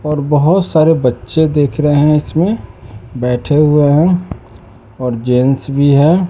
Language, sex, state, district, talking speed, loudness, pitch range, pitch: Hindi, male, Bihar, West Champaran, 145 wpm, -12 LUFS, 125-155 Hz, 145 Hz